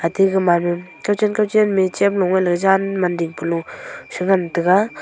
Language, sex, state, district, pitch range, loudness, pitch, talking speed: Wancho, female, Arunachal Pradesh, Longding, 175-195 Hz, -18 LUFS, 190 Hz, 190 wpm